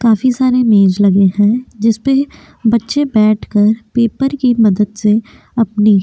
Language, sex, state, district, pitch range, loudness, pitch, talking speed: Hindi, female, Chhattisgarh, Korba, 210-250 Hz, -13 LUFS, 225 Hz, 130 wpm